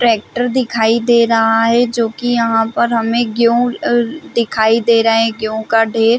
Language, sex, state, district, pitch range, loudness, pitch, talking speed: Hindi, female, Chhattisgarh, Bilaspur, 225-240 Hz, -14 LUFS, 230 Hz, 175 wpm